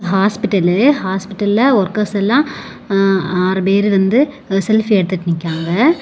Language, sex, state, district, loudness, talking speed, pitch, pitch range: Tamil, female, Tamil Nadu, Kanyakumari, -15 LUFS, 120 wpm, 200 Hz, 190-220 Hz